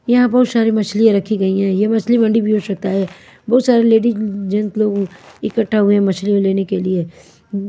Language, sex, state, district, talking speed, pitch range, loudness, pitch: Hindi, female, Maharashtra, Mumbai Suburban, 205 wpm, 195-225 Hz, -16 LUFS, 210 Hz